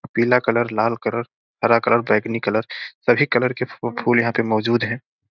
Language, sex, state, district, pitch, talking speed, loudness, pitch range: Hindi, male, Bihar, Gopalganj, 115 Hz, 190 wpm, -20 LUFS, 110-120 Hz